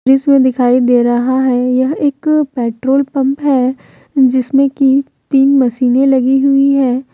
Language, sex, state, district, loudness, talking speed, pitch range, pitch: Hindi, female, Jharkhand, Deoghar, -12 LUFS, 145 wpm, 255-275 Hz, 265 Hz